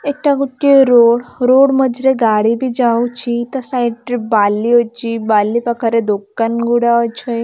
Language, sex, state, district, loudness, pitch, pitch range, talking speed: Odia, female, Odisha, Khordha, -14 LUFS, 240 Hz, 230-255 Hz, 155 wpm